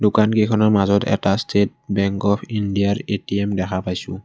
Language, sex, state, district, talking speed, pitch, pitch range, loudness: Assamese, male, Assam, Kamrup Metropolitan, 140 wpm, 100 Hz, 100-105 Hz, -19 LUFS